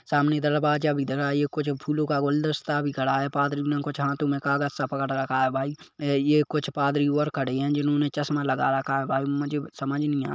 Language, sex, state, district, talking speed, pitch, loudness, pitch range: Hindi, male, Chhattisgarh, Kabirdham, 255 wpm, 145 Hz, -25 LUFS, 140-150 Hz